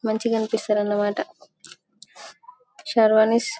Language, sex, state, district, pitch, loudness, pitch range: Telugu, female, Telangana, Karimnagar, 220 Hz, -21 LUFS, 215-235 Hz